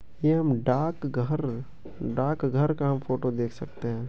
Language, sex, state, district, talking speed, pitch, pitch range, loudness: Hindi, male, Bihar, Begusarai, 145 wpm, 135 Hz, 125-150 Hz, -28 LUFS